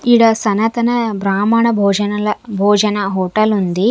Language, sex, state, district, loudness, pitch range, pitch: Telugu, female, Andhra Pradesh, Sri Satya Sai, -15 LUFS, 200-230 Hz, 210 Hz